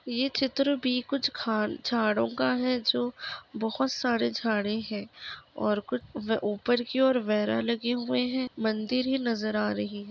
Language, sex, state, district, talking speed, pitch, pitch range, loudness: Hindi, female, Chhattisgarh, Raigarh, 165 wpm, 235 Hz, 210-255 Hz, -28 LUFS